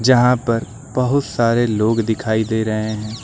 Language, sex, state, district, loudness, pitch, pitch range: Hindi, male, Uttar Pradesh, Lucknow, -18 LUFS, 115 Hz, 110-125 Hz